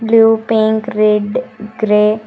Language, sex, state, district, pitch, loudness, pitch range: Kannada, female, Karnataka, Bidar, 220 Hz, -13 LUFS, 215-225 Hz